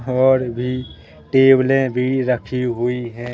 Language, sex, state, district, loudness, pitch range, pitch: Hindi, male, Madhya Pradesh, Katni, -18 LUFS, 120-130 Hz, 125 Hz